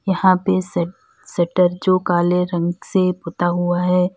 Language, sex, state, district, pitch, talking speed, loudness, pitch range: Hindi, female, Uttar Pradesh, Lalitpur, 180 Hz, 160 wpm, -19 LUFS, 175-185 Hz